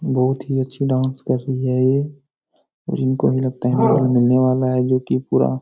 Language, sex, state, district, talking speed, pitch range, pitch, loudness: Hindi, male, Bihar, Lakhisarai, 205 wpm, 125-135 Hz, 130 Hz, -19 LUFS